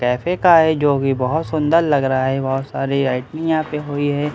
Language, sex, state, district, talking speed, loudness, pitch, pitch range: Hindi, male, Bihar, Katihar, 260 wpm, -18 LUFS, 145 Hz, 135-160 Hz